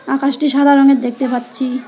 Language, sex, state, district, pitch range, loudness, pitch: Bengali, female, West Bengal, Alipurduar, 255-275 Hz, -14 LUFS, 270 Hz